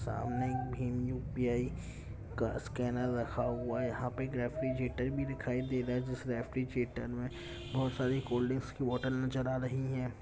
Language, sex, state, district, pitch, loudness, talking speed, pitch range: Hindi, male, Bihar, Jamui, 125 Hz, -36 LUFS, 190 wpm, 120-130 Hz